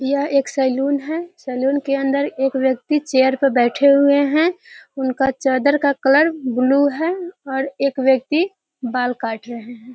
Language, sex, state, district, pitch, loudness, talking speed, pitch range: Hindi, female, Bihar, Muzaffarpur, 275 Hz, -18 LUFS, 165 wpm, 260-285 Hz